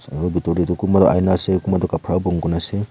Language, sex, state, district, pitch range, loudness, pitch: Nagamese, male, Nagaland, Kohima, 85-95 Hz, -19 LUFS, 90 Hz